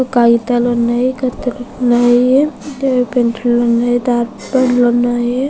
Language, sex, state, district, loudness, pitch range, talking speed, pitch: Telugu, female, Andhra Pradesh, Chittoor, -14 LUFS, 240-255 Hz, 120 wpm, 245 Hz